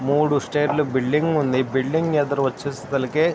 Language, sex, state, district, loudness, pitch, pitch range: Telugu, male, Andhra Pradesh, Srikakulam, -21 LUFS, 145 Hz, 135-150 Hz